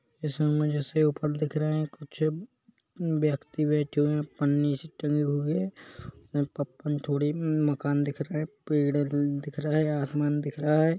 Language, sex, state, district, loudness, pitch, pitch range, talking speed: Hindi, male, Chhattisgarh, Rajnandgaon, -28 LUFS, 150 Hz, 145-155 Hz, 170 wpm